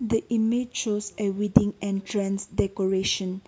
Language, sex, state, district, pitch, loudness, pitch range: English, female, Nagaland, Kohima, 205 Hz, -26 LUFS, 195-220 Hz